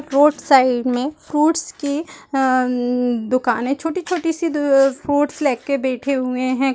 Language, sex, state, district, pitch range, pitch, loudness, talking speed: Hindi, female, Chhattisgarh, Raigarh, 255-295 Hz, 275 Hz, -19 LUFS, 160 wpm